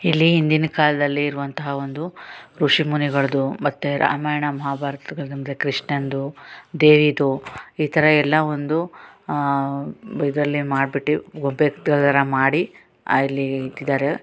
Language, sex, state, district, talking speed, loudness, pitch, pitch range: Kannada, female, Karnataka, Raichur, 105 wpm, -20 LUFS, 145 Hz, 140-150 Hz